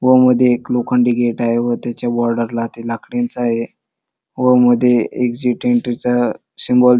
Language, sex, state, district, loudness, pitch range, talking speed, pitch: Marathi, male, Maharashtra, Dhule, -16 LUFS, 120-125 Hz, 165 wpm, 120 Hz